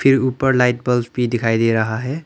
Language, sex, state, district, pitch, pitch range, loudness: Hindi, male, Arunachal Pradesh, Lower Dibang Valley, 125 Hz, 115-130 Hz, -18 LUFS